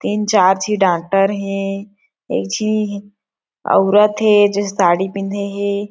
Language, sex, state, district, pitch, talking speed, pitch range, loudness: Chhattisgarhi, female, Chhattisgarh, Sarguja, 200 Hz, 130 wpm, 195-210 Hz, -16 LUFS